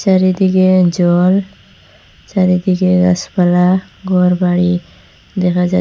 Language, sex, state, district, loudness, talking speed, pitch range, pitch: Bengali, female, Assam, Hailakandi, -13 LUFS, 70 wpm, 180-185 Hz, 180 Hz